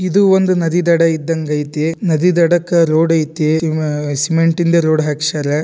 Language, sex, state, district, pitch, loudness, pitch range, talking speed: Kannada, male, Karnataka, Dharwad, 165 Hz, -14 LUFS, 155-170 Hz, 140 wpm